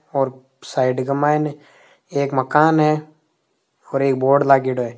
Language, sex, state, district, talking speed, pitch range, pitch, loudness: Hindi, male, Rajasthan, Nagaur, 145 wpm, 130-150 Hz, 140 Hz, -18 LUFS